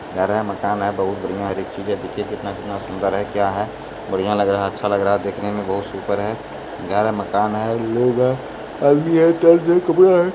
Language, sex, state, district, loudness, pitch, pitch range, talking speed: Hindi, male, Bihar, Kishanganj, -19 LUFS, 105 Hz, 100-115 Hz, 195 wpm